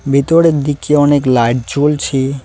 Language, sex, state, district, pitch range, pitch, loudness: Bengali, male, West Bengal, Cooch Behar, 135-150 Hz, 140 Hz, -13 LUFS